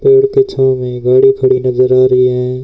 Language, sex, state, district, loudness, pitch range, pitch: Hindi, male, Rajasthan, Bikaner, -11 LUFS, 125-135 Hz, 130 Hz